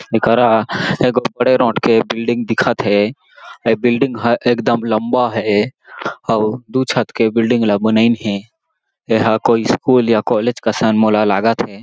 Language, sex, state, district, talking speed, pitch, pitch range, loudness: Chhattisgarhi, male, Chhattisgarh, Jashpur, 160 wpm, 115 Hz, 110-120 Hz, -15 LUFS